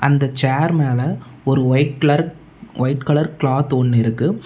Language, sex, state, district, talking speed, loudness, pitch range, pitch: Tamil, male, Tamil Nadu, Namakkal, 150 wpm, -18 LUFS, 130-155 Hz, 140 Hz